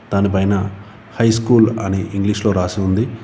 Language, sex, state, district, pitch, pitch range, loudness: Telugu, male, Telangana, Komaram Bheem, 105 Hz, 100-115 Hz, -17 LUFS